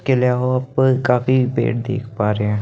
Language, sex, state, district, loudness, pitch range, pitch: Hindi, male, Chandigarh, Chandigarh, -18 LUFS, 120-130 Hz, 125 Hz